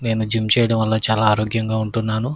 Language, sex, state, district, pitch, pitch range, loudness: Telugu, male, Andhra Pradesh, Krishna, 110 Hz, 110-115 Hz, -19 LUFS